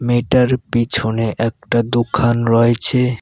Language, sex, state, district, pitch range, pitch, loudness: Bengali, male, West Bengal, Cooch Behar, 115-120 Hz, 120 Hz, -15 LUFS